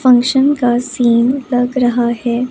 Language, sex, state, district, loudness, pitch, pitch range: Hindi, female, Chandigarh, Chandigarh, -14 LUFS, 245 Hz, 240-255 Hz